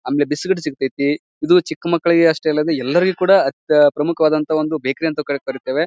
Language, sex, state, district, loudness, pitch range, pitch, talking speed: Kannada, male, Karnataka, Bijapur, -17 LUFS, 145-170 Hz, 155 Hz, 175 wpm